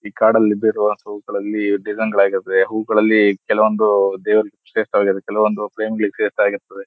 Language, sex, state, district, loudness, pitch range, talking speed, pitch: Kannada, male, Karnataka, Shimoga, -17 LUFS, 100-110 Hz, 70 wpm, 105 Hz